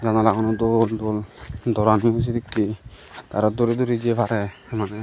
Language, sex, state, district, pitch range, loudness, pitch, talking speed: Chakma, male, Tripura, Dhalai, 105-115 Hz, -22 LUFS, 110 Hz, 145 wpm